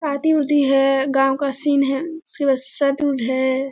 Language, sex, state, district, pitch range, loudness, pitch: Hindi, female, Bihar, Kishanganj, 270-290 Hz, -19 LUFS, 275 Hz